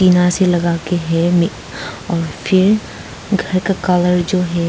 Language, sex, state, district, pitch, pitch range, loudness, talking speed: Hindi, female, Arunachal Pradesh, Papum Pare, 180 Hz, 170-185 Hz, -16 LUFS, 165 wpm